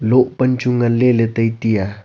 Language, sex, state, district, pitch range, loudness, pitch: Wancho, male, Arunachal Pradesh, Longding, 115-125 Hz, -16 LUFS, 115 Hz